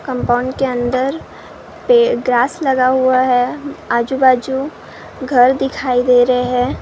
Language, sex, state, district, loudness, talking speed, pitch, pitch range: Hindi, female, Maharashtra, Gondia, -15 LUFS, 125 wpm, 255 Hz, 250-270 Hz